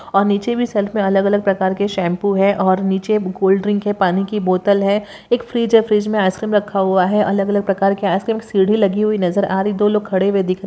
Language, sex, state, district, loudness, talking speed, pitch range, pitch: Hindi, female, West Bengal, Jalpaiguri, -17 LUFS, 255 wpm, 195-210 Hz, 200 Hz